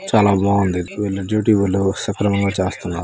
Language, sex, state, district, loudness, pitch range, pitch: Telugu, male, Andhra Pradesh, Srikakulam, -18 LUFS, 95-105 Hz, 100 Hz